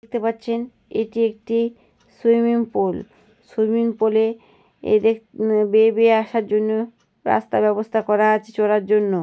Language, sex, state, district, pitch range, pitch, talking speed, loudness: Bengali, female, West Bengal, Jhargram, 210-230 Hz, 220 Hz, 125 wpm, -20 LUFS